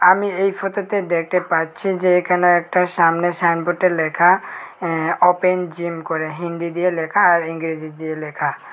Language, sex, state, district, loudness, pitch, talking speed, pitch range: Bengali, male, Tripura, Unakoti, -18 LUFS, 175 Hz, 150 wpm, 165-180 Hz